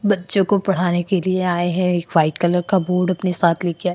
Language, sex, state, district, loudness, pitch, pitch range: Hindi, female, Uttar Pradesh, Hamirpur, -19 LUFS, 180 Hz, 175-185 Hz